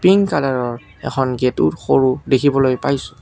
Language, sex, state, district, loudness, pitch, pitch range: Assamese, male, Assam, Kamrup Metropolitan, -17 LUFS, 130 Hz, 125-140 Hz